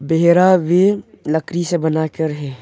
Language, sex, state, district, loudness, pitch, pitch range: Hindi, male, Arunachal Pradesh, Longding, -16 LUFS, 165 Hz, 155-175 Hz